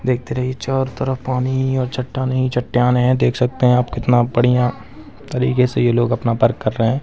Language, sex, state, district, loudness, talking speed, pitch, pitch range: Hindi, male, Bihar, Purnia, -18 LUFS, 220 wpm, 125 Hz, 120-130 Hz